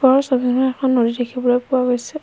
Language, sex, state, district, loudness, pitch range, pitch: Assamese, female, Assam, Hailakandi, -18 LUFS, 245-260 Hz, 255 Hz